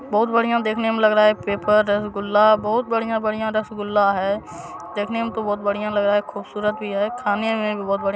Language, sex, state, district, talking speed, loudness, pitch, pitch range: Hindi, male, Bihar, Supaul, 215 wpm, -20 LUFS, 210 Hz, 205-220 Hz